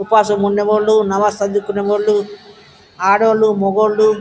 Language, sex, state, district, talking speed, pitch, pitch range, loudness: Telugu, female, Andhra Pradesh, Guntur, 115 wpm, 210 Hz, 205-215 Hz, -15 LUFS